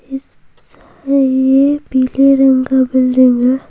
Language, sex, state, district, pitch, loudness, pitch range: Hindi, female, Bihar, Patna, 265 Hz, -12 LUFS, 260-275 Hz